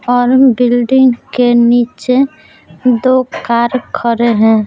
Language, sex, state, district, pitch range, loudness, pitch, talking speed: Hindi, female, Bihar, Patna, 235-255 Hz, -11 LUFS, 245 Hz, 105 wpm